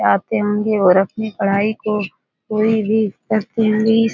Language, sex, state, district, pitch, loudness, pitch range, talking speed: Hindi, female, Bihar, Jahanabad, 215 Hz, -17 LUFS, 205-220 Hz, 145 wpm